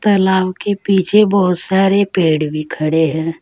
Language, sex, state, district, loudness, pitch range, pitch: Hindi, female, Uttar Pradesh, Saharanpur, -14 LUFS, 160-200 Hz, 185 Hz